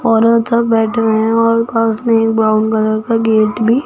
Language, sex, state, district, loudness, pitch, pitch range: Hindi, female, Rajasthan, Jaipur, -13 LUFS, 225 Hz, 220-230 Hz